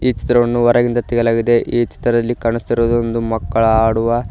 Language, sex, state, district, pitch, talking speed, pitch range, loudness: Kannada, male, Karnataka, Koppal, 120 Hz, 140 wpm, 115-120 Hz, -16 LUFS